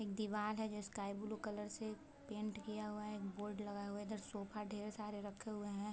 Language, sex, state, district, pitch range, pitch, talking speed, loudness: Hindi, female, Bihar, Gopalganj, 205-215 Hz, 210 Hz, 235 wpm, -46 LUFS